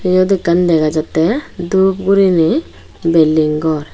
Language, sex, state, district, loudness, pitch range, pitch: Chakma, female, Tripura, West Tripura, -14 LUFS, 160-190 Hz, 170 Hz